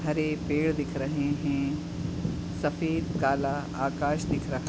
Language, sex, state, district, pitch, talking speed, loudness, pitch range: Hindi, female, Goa, North and South Goa, 150 Hz, 130 wpm, -29 LUFS, 145-155 Hz